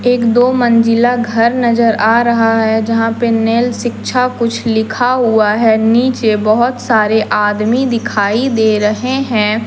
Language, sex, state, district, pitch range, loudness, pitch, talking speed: Hindi, female, Jharkhand, Deoghar, 220-245 Hz, -12 LUFS, 230 Hz, 150 wpm